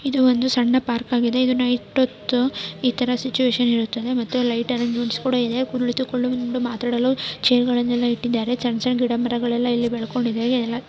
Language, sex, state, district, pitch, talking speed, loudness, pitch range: Kannada, female, Karnataka, Shimoga, 245 Hz, 140 wpm, -21 LUFS, 240-250 Hz